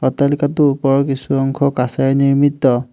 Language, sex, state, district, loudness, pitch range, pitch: Assamese, male, Assam, Hailakandi, -15 LUFS, 135-140 Hz, 135 Hz